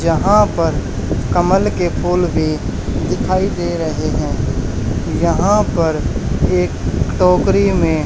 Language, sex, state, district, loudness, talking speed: Hindi, male, Haryana, Charkhi Dadri, -16 LUFS, 110 wpm